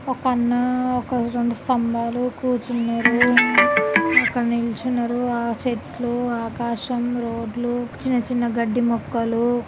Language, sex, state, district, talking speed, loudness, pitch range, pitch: Telugu, female, Andhra Pradesh, Guntur, 95 wpm, -21 LUFS, 235-245 Hz, 240 Hz